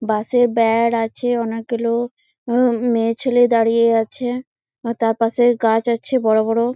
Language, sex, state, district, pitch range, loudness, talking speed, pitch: Bengali, female, West Bengal, Jalpaiguri, 225-245 Hz, -18 LUFS, 115 wpm, 235 Hz